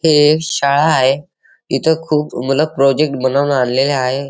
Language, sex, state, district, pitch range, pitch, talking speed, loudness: Marathi, male, Maharashtra, Dhule, 135-155 Hz, 140 Hz, 155 wpm, -14 LUFS